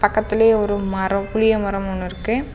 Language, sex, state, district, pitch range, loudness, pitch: Tamil, female, Tamil Nadu, Namakkal, 195-220 Hz, -19 LUFS, 210 Hz